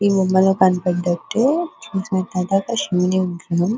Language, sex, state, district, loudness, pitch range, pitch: Telugu, female, Telangana, Nalgonda, -19 LUFS, 180-195 Hz, 190 Hz